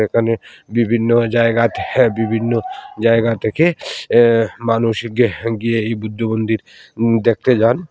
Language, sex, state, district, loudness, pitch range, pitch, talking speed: Bengali, male, Tripura, Unakoti, -16 LUFS, 115-120 Hz, 115 Hz, 120 wpm